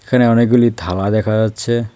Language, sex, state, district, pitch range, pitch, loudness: Bengali, male, West Bengal, Cooch Behar, 110-120 Hz, 115 Hz, -15 LUFS